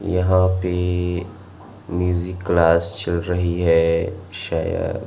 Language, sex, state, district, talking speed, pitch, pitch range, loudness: Hindi, male, Chhattisgarh, Raipur, 95 wpm, 90 Hz, 85-95 Hz, -20 LUFS